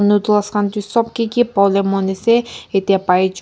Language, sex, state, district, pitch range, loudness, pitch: Nagamese, female, Nagaland, Kohima, 195-230 Hz, -16 LUFS, 205 Hz